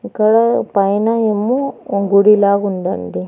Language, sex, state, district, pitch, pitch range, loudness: Telugu, female, Andhra Pradesh, Annamaya, 210 Hz, 200-230 Hz, -14 LUFS